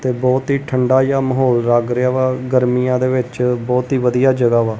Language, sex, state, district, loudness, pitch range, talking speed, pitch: Punjabi, male, Punjab, Kapurthala, -16 LUFS, 125-130 Hz, 210 wpm, 125 Hz